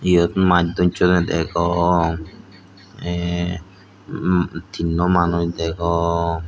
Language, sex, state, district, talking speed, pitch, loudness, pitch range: Chakma, male, Tripura, Dhalai, 85 wpm, 85 Hz, -19 LUFS, 85-90 Hz